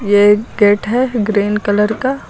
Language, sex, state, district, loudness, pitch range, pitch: Hindi, female, Uttar Pradesh, Lucknow, -14 LUFS, 205-230 Hz, 210 Hz